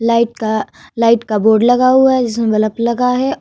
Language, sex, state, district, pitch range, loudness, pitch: Hindi, female, Bihar, Vaishali, 220-250 Hz, -13 LUFS, 230 Hz